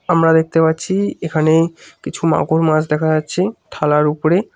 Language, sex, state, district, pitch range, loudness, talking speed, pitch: Bengali, male, West Bengal, Cooch Behar, 155-170 Hz, -16 LUFS, 145 wpm, 160 Hz